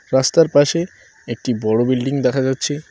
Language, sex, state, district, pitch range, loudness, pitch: Bengali, male, West Bengal, Cooch Behar, 125-145 Hz, -17 LUFS, 130 Hz